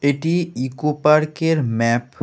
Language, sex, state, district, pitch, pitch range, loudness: Bengali, male, West Bengal, Kolkata, 150 Hz, 125-155 Hz, -19 LUFS